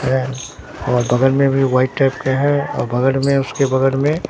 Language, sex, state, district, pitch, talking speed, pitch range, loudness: Hindi, male, Bihar, Katihar, 135 Hz, 195 wpm, 130-140 Hz, -17 LUFS